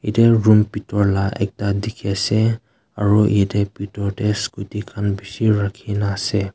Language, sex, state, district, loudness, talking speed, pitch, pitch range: Nagamese, male, Nagaland, Kohima, -19 LUFS, 135 wpm, 105 Hz, 100-110 Hz